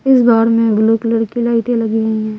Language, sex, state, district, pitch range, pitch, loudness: Hindi, female, Bihar, Patna, 225-235 Hz, 230 Hz, -14 LUFS